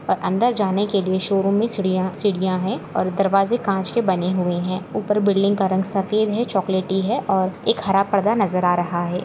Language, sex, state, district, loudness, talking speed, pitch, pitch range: Hindi, female, Goa, North and South Goa, -19 LUFS, 215 wpm, 195 Hz, 185-205 Hz